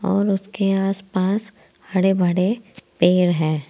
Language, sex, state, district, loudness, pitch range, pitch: Hindi, female, Uttar Pradesh, Saharanpur, -20 LUFS, 180-200 Hz, 195 Hz